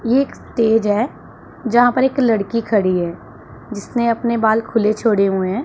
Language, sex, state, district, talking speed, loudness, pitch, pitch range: Hindi, female, Punjab, Pathankot, 180 wpm, -17 LUFS, 225 Hz, 210-240 Hz